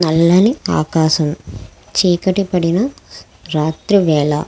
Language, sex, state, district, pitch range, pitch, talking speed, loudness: Telugu, female, Andhra Pradesh, Krishna, 150-185 Hz, 165 Hz, 80 wpm, -15 LUFS